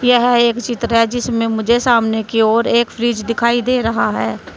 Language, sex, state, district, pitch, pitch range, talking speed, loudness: Hindi, female, Uttar Pradesh, Saharanpur, 235 Hz, 230-240 Hz, 195 wpm, -15 LUFS